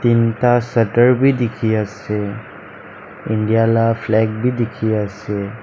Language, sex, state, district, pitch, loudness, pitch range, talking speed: Nagamese, male, Nagaland, Dimapur, 115 Hz, -17 LUFS, 110-120 Hz, 115 wpm